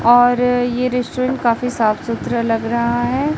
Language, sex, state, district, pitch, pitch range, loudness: Hindi, female, Chhattisgarh, Raipur, 245 Hz, 235-250 Hz, -17 LUFS